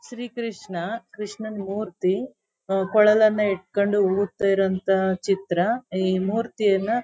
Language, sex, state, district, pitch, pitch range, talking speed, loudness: Kannada, female, Karnataka, Chamarajanagar, 200 Hz, 190-215 Hz, 95 wpm, -23 LUFS